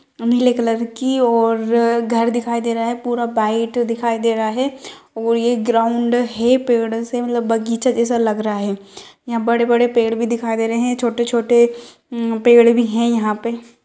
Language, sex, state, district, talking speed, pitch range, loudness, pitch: Kumaoni, female, Uttarakhand, Uttarkashi, 180 wpm, 230-240 Hz, -17 LUFS, 235 Hz